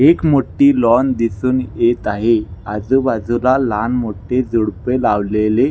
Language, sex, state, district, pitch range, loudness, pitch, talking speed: Marathi, male, Maharashtra, Nagpur, 105-130 Hz, -16 LUFS, 120 Hz, 125 wpm